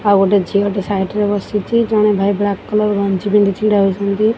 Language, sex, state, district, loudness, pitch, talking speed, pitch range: Odia, female, Odisha, Khordha, -15 LUFS, 205 Hz, 180 wpm, 200-210 Hz